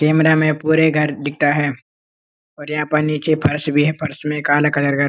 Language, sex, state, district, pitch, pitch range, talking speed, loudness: Hindi, male, Uttarakhand, Uttarkashi, 150 Hz, 145-155 Hz, 225 wpm, -17 LUFS